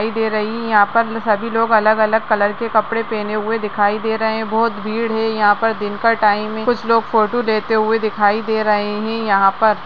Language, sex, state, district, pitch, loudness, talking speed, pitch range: Hindi, female, Uttarakhand, Uttarkashi, 220 Hz, -17 LUFS, 230 wpm, 210-225 Hz